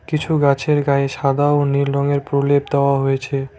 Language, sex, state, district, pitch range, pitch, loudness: Bengali, male, West Bengal, Cooch Behar, 140-145 Hz, 140 Hz, -17 LUFS